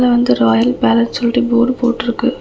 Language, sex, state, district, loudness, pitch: Tamil, female, Tamil Nadu, Chennai, -14 LUFS, 235 Hz